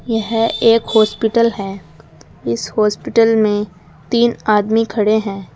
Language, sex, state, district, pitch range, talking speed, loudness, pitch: Hindi, female, Uttar Pradesh, Saharanpur, 195-225 Hz, 120 wpm, -15 LUFS, 215 Hz